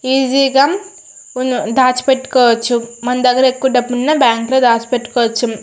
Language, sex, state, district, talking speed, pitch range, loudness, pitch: Telugu, female, Andhra Pradesh, Srikakulam, 140 wpm, 240-265 Hz, -14 LUFS, 250 Hz